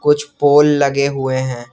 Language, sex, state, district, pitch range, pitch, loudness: Hindi, male, Jharkhand, Garhwa, 130-145 Hz, 140 Hz, -15 LUFS